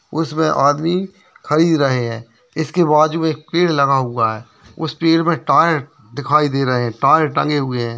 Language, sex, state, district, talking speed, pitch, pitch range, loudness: Hindi, male, Bihar, Bhagalpur, 180 wpm, 150 Hz, 130-165 Hz, -16 LUFS